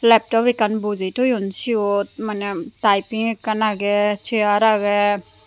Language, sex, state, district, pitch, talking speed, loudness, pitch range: Chakma, female, Tripura, Unakoti, 215 Hz, 120 wpm, -19 LUFS, 205-225 Hz